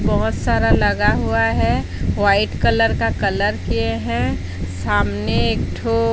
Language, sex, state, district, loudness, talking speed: Hindi, female, Odisha, Sambalpur, -19 LUFS, 135 wpm